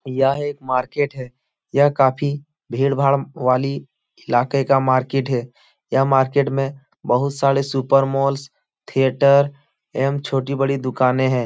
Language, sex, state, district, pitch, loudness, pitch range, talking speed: Hindi, male, Uttar Pradesh, Etah, 135 Hz, -19 LUFS, 130-140 Hz, 135 wpm